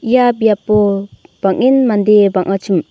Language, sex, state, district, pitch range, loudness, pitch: Garo, female, Meghalaya, North Garo Hills, 195-230 Hz, -13 LUFS, 205 Hz